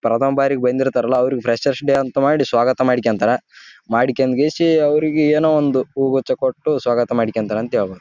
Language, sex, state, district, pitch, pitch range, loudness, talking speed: Kannada, male, Karnataka, Raichur, 130 Hz, 120-140 Hz, -17 LUFS, 110 wpm